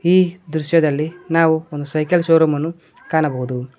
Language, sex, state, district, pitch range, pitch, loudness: Kannada, male, Karnataka, Koppal, 150-165 Hz, 160 Hz, -18 LUFS